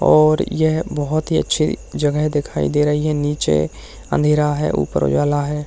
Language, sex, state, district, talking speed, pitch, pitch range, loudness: Hindi, male, Uttarakhand, Tehri Garhwal, 170 wpm, 150 Hz, 145-155 Hz, -18 LUFS